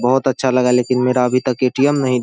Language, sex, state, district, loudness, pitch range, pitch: Hindi, male, Bihar, Saharsa, -16 LUFS, 125-130 Hz, 125 Hz